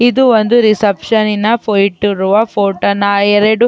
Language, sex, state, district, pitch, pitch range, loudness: Kannada, female, Karnataka, Chamarajanagar, 210 Hz, 200-225 Hz, -12 LUFS